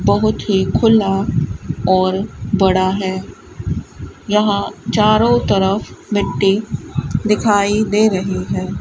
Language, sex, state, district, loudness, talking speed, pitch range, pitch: Hindi, female, Rajasthan, Bikaner, -16 LUFS, 95 wpm, 190-210 Hz, 200 Hz